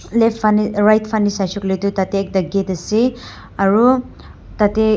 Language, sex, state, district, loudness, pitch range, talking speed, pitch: Nagamese, female, Nagaland, Dimapur, -17 LUFS, 195-220 Hz, 170 wpm, 210 Hz